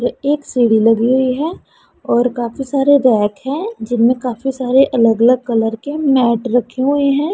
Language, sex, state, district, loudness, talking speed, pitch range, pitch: Hindi, female, Punjab, Pathankot, -15 LUFS, 165 wpm, 235-275 Hz, 255 Hz